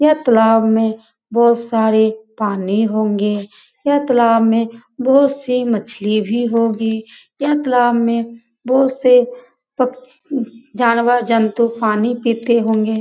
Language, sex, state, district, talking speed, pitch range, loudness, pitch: Hindi, female, Bihar, Lakhisarai, 120 wpm, 220-250 Hz, -16 LUFS, 235 Hz